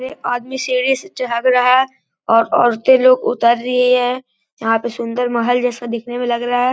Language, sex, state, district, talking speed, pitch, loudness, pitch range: Hindi, male, Bihar, Gaya, 205 wpm, 245 Hz, -16 LUFS, 235-255 Hz